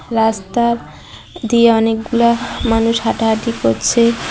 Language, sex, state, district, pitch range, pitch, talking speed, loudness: Bengali, female, West Bengal, Cooch Behar, 225-235 Hz, 230 Hz, 85 wpm, -15 LUFS